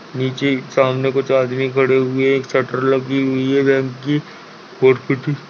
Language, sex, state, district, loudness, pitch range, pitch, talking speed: Hindi, male, Uttarakhand, Uttarkashi, -17 LUFS, 130-135 Hz, 135 Hz, 175 wpm